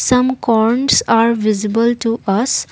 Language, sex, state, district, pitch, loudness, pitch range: English, female, Assam, Kamrup Metropolitan, 230 Hz, -15 LUFS, 220-250 Hz